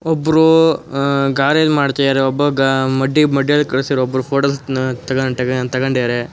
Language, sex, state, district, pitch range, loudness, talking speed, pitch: Kannada, male, Karnataka, Chamarajanagar, 130-145 Hz, -15 LUFS, 65 wpm, 135 Hz